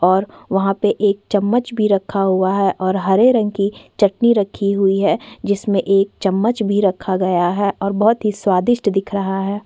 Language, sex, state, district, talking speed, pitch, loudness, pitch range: Hindi, female, Chhattisgarh, Korba, 195 wpm, 200 Hz, -17 LUFS, 195-205 Hz